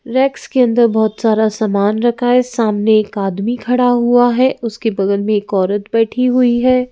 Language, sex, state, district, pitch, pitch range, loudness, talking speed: Hindi, female, Madhya Pradesh, Bhopal, 230 Hz, 215-250 Hz, -14 LUFS, 190 wpm